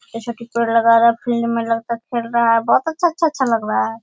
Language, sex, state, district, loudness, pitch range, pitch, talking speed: Hindi, male, Bihar, Jamui, -17 LUFS, 230-235 Hz, 235 Hz, 255 wpm